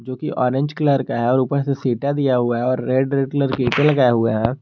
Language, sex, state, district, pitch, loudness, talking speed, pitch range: Hindi, male, Jharkhand, Garhwa, 130 Hz, -19 LUFS, 270 wpm, 125-140 Hz